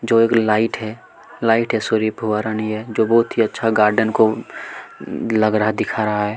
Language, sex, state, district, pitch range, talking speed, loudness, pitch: Hindi, male, Chhattisgarh, Kabirdham, 110-115 Hz, 205 wpm, -18 LUFS, 110 Hz